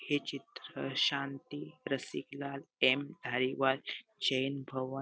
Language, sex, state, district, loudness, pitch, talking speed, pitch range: Marathi, male, Maharashtra, Sindhudurg, -35 LUFS, 135 Hz, 105 wpm, 130-140 Hz